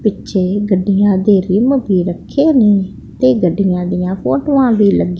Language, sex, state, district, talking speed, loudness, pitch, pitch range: Punjabi, female, Punjab, Pathankot, 140 wpm, -13 LUFS, 195 Hz, 185-210 Hz